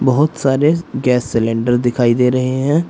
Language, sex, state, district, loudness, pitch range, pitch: Hindi, male, Uttar Pradesh, Saharanpur, -15 LUFS, 120-145 Hz, 130 Hz